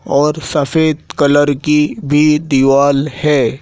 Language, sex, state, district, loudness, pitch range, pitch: Hindi, male, Madhya Pradesh, Dhar, -13 LUFS, 140-150 Hz, 145 Hz